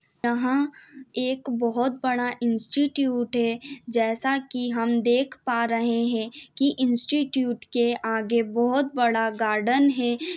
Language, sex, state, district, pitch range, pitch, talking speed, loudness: Hindi, female, Jharkhand, Jamtara, 235-265 Hz, 245 Hz, 120 wpm, -24 LUFS